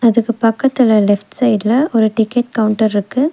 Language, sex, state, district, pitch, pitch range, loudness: Tamil, female, Tamil Nadu, Nilgiris, 225 Hz, 215-245 Hz, -14 LUFS